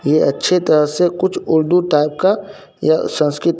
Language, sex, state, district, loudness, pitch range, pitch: Hindi, male, Bihar, Katihar, -16 LUFS, 150-180 Hz, 165 Hz